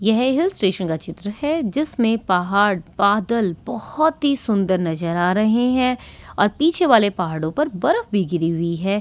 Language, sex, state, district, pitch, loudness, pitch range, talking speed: Hindi, female, Delhi, New Delhi, 210 Hz, -20 LUFS, 180-250 Hz, 175 wpm